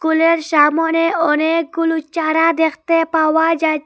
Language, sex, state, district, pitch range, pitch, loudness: Bengali, female, Assam, Hailakandi, 315-330 Hz, 325 Hz, -15 LUFS